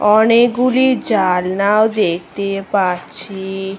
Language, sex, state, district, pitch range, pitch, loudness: Bengali, female, West Bengal, Malda, 190-220 Hz, 195 Hz, -15 LUFS